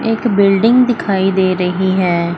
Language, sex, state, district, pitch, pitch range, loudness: Hindi, female, Chandigarh, Chandigarh, 190 Hz, 185-225 Hz, -13 LUFS